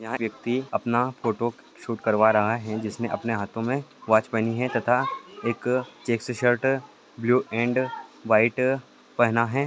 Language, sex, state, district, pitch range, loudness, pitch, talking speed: Hindi, male, Rajasthan, Churu, 115-130 Hz, -25 LUFS, 120 Hz, 140 wpm